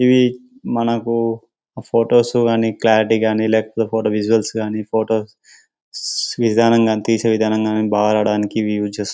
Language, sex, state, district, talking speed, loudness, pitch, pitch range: Telugu, male, Telangana, Karimnagar, 105 wpm, -17 LUFS, 110 Hz, 110-115 Hz